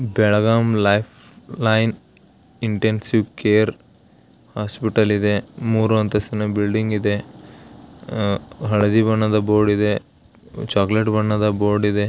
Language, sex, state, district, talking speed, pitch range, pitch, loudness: Kannada, male, Karnataka, Belgaum, 95 wpm, 105-110 Hz, 105 Hz, -19 LUFS